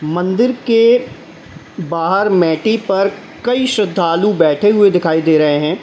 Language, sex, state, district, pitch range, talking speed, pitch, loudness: Hindi, male, Uttar Pradesh, Lalitpur, 165-220 Hz, 135 wpm, 195 Hz, -14 LUFS